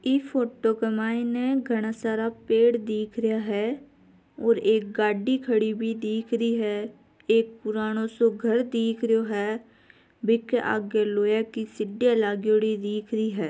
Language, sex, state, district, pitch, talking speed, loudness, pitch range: Marwari, female, Rajasthan, Nagaur, 225 Hz, 160 wpm, -25 LUFS, 215-235 Hz